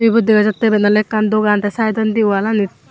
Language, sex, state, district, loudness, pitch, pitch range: Chakma, female, Tripura, Unakoti, -15 LUFS, 215 Hz, 210-220 Hz